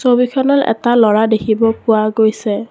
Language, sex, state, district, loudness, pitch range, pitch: Assamese, female, Assam, Kamrup Metropolitan, -13 LUFS, 220-245 Hz, 225 Hz